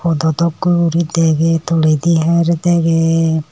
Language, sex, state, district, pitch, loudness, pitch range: Chakma, female, Tripura, Unakoti, 165 Hz, -14 LUFS, 160-170 Hz